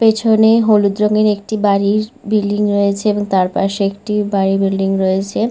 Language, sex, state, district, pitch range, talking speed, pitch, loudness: Bengali, female, West Bengal, Malda, 195-215 Hz, 150 wpm, 205 Hz, -15 LUFS